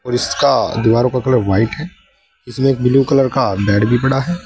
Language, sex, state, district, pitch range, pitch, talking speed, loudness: Hindi, male, Uttar Pradesh, Saharanpur, 115-135 Hz, 125 Hz, 215 wpm, -15 LUFS